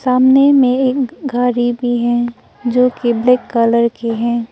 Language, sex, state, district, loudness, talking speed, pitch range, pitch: Hindi, female, Arunachal Pradesh, Papum Pare, -14 LUFS, 160 wpm, 235-255 Hz, 245 Hz